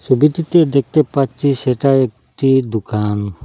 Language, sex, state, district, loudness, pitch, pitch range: Bengali, male, Assam, Hailakandi, -16 LUFS, 135 Hz, 115-145 Hz